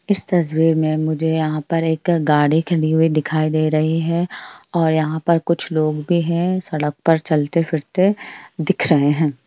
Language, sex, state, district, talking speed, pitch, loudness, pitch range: Hindi, female, Bihar, Jamui, 175 wpm, 160 Hz, -18 LUFS, 155-170 Hz